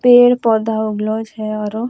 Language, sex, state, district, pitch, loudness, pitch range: Angika, female, Bihar, Bhagalpur, 220 Hz, -16 LUFS, 215-235 Hz